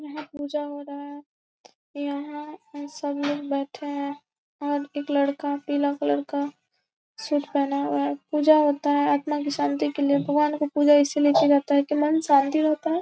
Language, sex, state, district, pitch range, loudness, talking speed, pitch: Hindi, female, Bihar, Gopalganj, 285-295 Hz, -24 LUFS, 185 wpm, 290 Hz